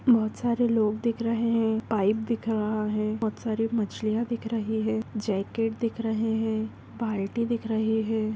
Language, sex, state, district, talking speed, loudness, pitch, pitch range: Hindi, female, Andhra Pradesh, Anantapur, 170 wpm, -27 LUFS, 220 Hz, 215-230 Hz